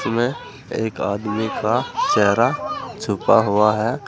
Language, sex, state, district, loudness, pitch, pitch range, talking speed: Hindi, male, Uttar Pradesh, Saharanpur, -20 LUFS, 110 Hz, 105-115 Hz, 120 wpm